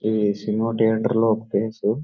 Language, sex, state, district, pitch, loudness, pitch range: Telugu, male, Karnataka, Bellary, 110 Hz, -22 LUFS, 110-115 Hz